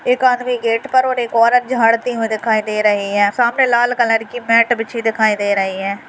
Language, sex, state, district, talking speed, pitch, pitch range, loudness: Hindi, female, Bihar, Madhepura, 225 wpm, 230 Hz, 215-245 Hz, -15 LUFS